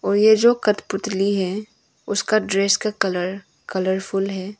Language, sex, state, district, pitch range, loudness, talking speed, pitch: Hindi, female, Arunachal Pradesh, Longding, 195-210 Hz, -20 LUFS, 145 wpm, 200 Hz